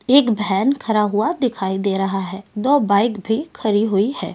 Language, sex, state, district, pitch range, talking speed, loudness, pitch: Hindi, female, Delhi, New Delhi, 200-250 Hz, 195 wpm, -19 LUFS, 210 Hz